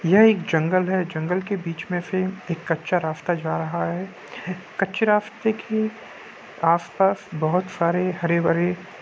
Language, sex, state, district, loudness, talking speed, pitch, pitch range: Hindi, male, Jharkhand, Sahebganj, -23 LUFS, 160 wpm, 180 Hz, 165-195 Hz